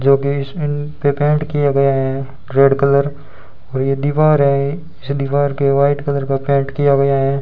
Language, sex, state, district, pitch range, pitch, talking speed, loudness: Hindi, male, Rajasthan, Bikaner, 135-145 Hz, 140 Hz, 185 wpm, -16 LUFS